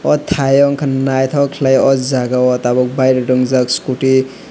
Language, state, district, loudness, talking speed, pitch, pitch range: Kokborok, Tripura, West Tripura, -14 LUFS, 175 wpm, 130 Hz, 125-135 Hz